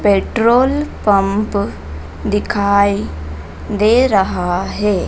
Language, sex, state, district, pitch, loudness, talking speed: Hindi, female, Madhya Pradesh, Dhar, 200 Hz, -15 LUFS, 70 wpm